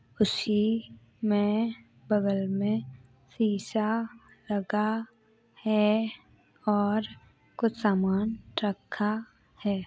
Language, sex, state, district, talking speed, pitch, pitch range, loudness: Hindi, female, Uttar Pradesh, Hamirpur, 75 wpm, 210 Hz, 200-220 Hz, -29 LUFS